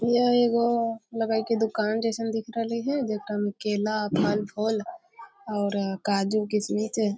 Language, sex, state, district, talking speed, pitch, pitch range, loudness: Maithili, female, Bihar, Muzaffarpur, 150 wpm, 220 Hz, 210-230 Hz, -26 LUFS